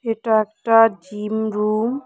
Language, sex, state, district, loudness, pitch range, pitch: Bengali, female, West Bengal, Cooch Behar, -19 LUFS, 210-225 Hz, 220 Hz